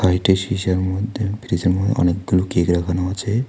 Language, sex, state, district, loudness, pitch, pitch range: Bengali, male, West Bengal, Alipurduar, -20 LUFS, 95 Hz, 90-100 Hz